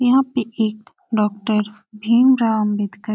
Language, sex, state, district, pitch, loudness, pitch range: Hindi, female, Uttar Pradesh, Etah, 215 Hz, -19 LUFS, 210-235 Hz